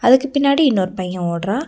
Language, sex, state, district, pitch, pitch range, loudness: Tamil, female, Tamil Nadu, Nilgiris, 230 Hz, 185-280 Hz, -17 LUFS